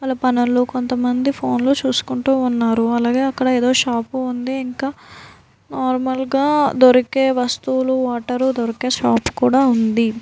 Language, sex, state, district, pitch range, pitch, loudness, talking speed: Telugu, female, Andhra Pradesh, Visakhapatnam, 245-260 Hz, 255 Hz, -18 LUFS, 130 wpm